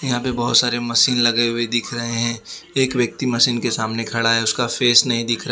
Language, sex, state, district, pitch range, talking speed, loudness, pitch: Hindi, male, Gujarat, Valsad, 115-125 Hz, 240 wpm, -18 LUFS, 120 Hz